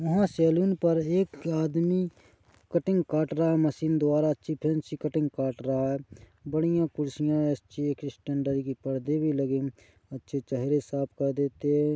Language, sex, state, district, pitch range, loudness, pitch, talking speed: Hindi, male, Chhattisgarh, Korba, 135-160 Hz, -28 LUFS, 150 Hz, 150 wpm